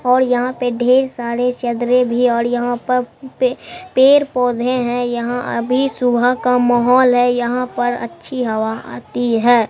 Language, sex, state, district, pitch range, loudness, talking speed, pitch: Hindi, male, Bihar, Katihar, 240-250 Hz, -16 LUFS, 155 wpm, 245 Hz